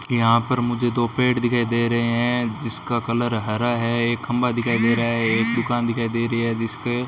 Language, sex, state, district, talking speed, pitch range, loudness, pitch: Hindi, male, Rajasthan, Bikaner, 230 wpm, 115-120 Hz, -21 LUFS, 120 Hz